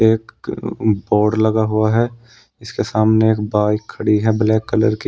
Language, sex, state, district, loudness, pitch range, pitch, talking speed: Hindi, male, Uttar Pradesh, Saharanpur, -17 LUFS, 105-110 Hz, 110 Hz, 175 wpm